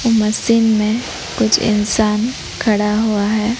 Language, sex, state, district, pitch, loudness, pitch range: Hindi, female, Odisha, Nuapada, 215 Hz, -16 LUFS, 210-225 Hz